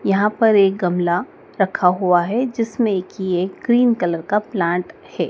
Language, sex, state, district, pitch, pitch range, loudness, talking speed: Hindi, female, Madhya Pradesh, Dhar, 195 Hz, 180-225 Hz, -18 LUFS, 170 wpm